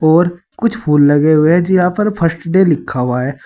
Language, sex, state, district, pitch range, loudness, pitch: Hindi, male, Uttar Pradesh, Saharanpur, 145-180 Hz, -13 LUFS, 165 Hz